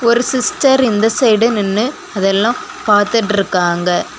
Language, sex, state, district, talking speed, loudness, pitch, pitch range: Tamil, female, Tamil Nadu, Kanyakumari, 115 wpm, -14 LUFS, 220 Hz, 200-240 Hz